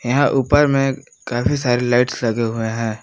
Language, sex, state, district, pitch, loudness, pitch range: Hindi, male, Jharkhand, Palamu, 125 Hz, -18 LUFS, 115-135 Hz